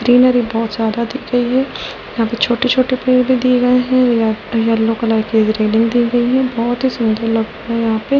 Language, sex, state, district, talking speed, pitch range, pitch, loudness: Hindi, female, Delhi, New Delhi, 205 wpm, 225-250 Hz, 235 Hz, -15 LUFS